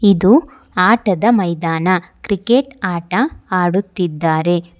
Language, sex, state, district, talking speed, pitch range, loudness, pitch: Kannada, female, Karnataka, Bangalore, 75 wpm, 175-230 Hz, -16 LUFS, 190 Hz